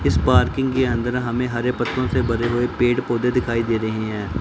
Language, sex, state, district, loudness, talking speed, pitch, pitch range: Hindi, male, Punjab, Pathankot, -20 LUFS, 215 wpm, 120 Hz, 115-125 Hz